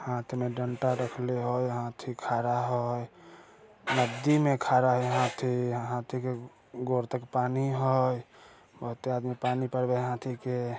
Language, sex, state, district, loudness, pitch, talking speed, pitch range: Maithili, male, Bihar, Samastipur, -30 LUFS, 125 Hz, 130 wpm, 120-130 Hz